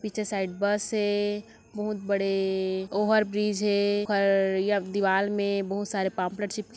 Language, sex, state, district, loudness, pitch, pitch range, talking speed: Chhattisgarhi, female, Chhattisgarh, Kabirdham, -27 LUFS, 205 Hz, 195-210 Hz, 140 wpm